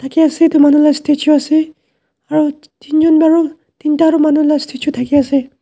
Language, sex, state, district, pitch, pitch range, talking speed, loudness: Nagamese, male, Nagaland, Dimapur, 300 Hz, 290-315 Hz, 180 wpm, -13 LUFS